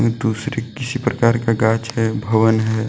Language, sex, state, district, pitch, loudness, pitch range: Hindi, male, Jharkhand, Deoghar, 115 Hz, -18 LUFS, 110-115 Hz